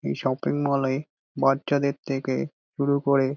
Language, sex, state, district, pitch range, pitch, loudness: Bengali, male, West Bengal, Dakshin Dinajpur, 135-140 Hz, 140 Hz, -25 LUFS